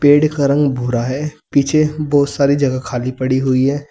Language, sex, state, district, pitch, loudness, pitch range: Hindi, male, Uttar Pradesh, Saharanpur, 140 Hz, -16 LUFS, 130-145 Hz